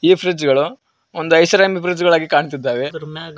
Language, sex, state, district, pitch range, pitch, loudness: Kannada, male, Karnataka, Koppal, 150-180 Hz, 165 Hz, -16 LUFS